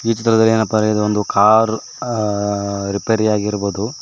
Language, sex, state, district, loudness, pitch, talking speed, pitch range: Kannada, male, Karnataka, Koppal, -17 LUFS, 110 Hz, 135 wpm, 105-110 Hz